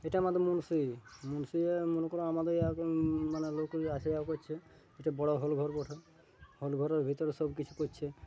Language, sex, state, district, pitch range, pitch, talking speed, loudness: Bengali, male, West Bengal, Purulia, 145-165 Hz, 155 Hz, 190 wpm, -35 LUFS